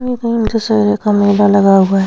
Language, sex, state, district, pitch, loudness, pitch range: Hindi, female, Uttar Pradesh, Hamirpur, 210 Hz, -12 LUFS, 200-225 Hz